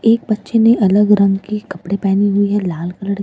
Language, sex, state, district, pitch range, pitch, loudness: Hindi, female, Bihar, Katihar, 195-210 Hz, 200 Hz, -15 LUFS